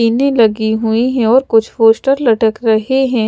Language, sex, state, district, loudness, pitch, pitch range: Hindi, female, Chandigarh, Chandigarh, -12 LUFS, 230 Hz, 225-255 Hz